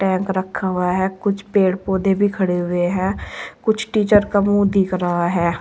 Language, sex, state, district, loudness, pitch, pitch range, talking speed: Hindi, female, Uttar Pradesh, Saharanpur, -19 LUFS, 190 Hz, 180-200 Hz, 195 wpm